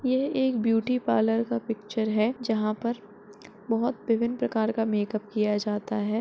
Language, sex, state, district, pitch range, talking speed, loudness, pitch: Hindi, female, Uttar Pradesh, Etah, 215-235 Hz, 165 wpm, -27 LUFS, 225 Hz